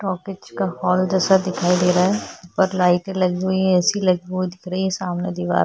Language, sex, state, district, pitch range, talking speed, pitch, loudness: Hindi, female, Chhattisgarh, Korba, 180-190 Hz, 210 wpm, 185 Hz, -20 LUFS